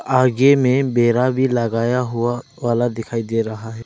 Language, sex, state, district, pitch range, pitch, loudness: Hindi, male, Arunachal Pradesh, Lower Dibang Valley, 115-130 Hz, 120 Hz, -18 LUFS